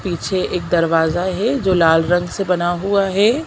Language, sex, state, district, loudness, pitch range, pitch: Hindi, female, Chhattisgarh, Sukma, -17 LUFS, 175-195 Hz, 180 Hz